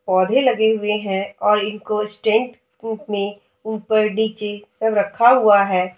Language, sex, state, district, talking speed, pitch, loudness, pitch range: Hindi, female, Uttar Pradesh, Budaun, 150 wpm, 210 Hz, -19 LUFS, 205-220 Hz